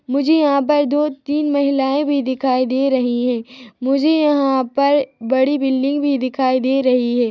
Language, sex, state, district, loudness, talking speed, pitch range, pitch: Hindi, female, Chhattisgarh, Rajnandgaon, -17 LUFS, 165 wpm, 255-285 Hz, 270 Hz